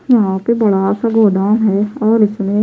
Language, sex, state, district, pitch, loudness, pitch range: Hindi, female, Bihar, Patna, 215 Hz, -14 LUFS, 200-225 Hz